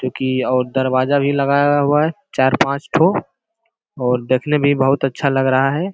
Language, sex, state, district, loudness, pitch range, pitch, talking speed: Hindi, male, Bihar, Jamui, -17 LUFS, 130-145 Hz, 135 Hz, 180 wpm